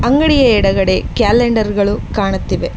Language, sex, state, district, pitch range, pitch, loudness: Kannada, female, Karnataka, Bangalore, 200-250 Hz, 220 Hz, -13 LUFS